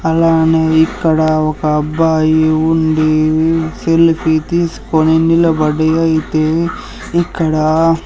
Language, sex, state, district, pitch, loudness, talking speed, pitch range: Telugu, male, Andhra Pradesh, Sri Satya Sai, 160 Hz, -13 LUFS, 80 wpm, 155-165 Hz